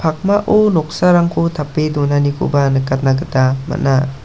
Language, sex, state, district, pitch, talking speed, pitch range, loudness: Garo, male, Meghalaya, South Garo Hills, 145 Hz, 100 wpm, 135-170 Hz, -15 LUFS